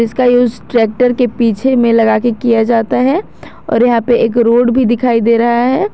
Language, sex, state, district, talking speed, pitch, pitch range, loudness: Hindi, female, Jharkhand, Garhwa, 200 wpm, 235 Hz, 230-250 Hz, -12 LUFS